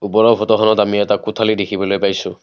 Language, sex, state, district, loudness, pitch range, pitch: Assamese, male, Assam, Kamrup Metropolitan, -15 LUFS, 100-110 Hz, 105 Hz